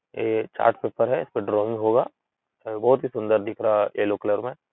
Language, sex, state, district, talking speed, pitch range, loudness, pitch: Hindi, male, Uttar Pradesh, Etah, 230 wpm, 105-110 Hz, -24 LUFS, 105 Hz